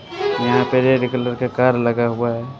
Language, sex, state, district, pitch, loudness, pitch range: Hindi, male, Bihar, West Champaran, 125 Hz, -18 LUFS, 120-130 Hz